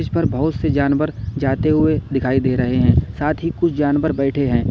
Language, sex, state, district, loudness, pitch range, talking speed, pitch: Hindi, male, Uttar Pradesh, Lalitpur, -18 LUFS, 125-155 Hz, 215 wpm, 140 Hz